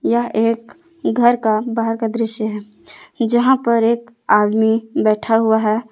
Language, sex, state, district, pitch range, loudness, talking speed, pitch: Hindi, female, Jharkhand, Palamu, 220-235 Hz, -17 LUFS, 150 wpm, 230 Hz